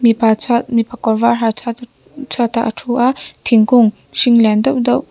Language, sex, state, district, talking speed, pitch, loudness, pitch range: Mizo, female, Mizoram, Aizawl, 200 wpm, 235 Hz, -14 LUFS, 225-245 Hz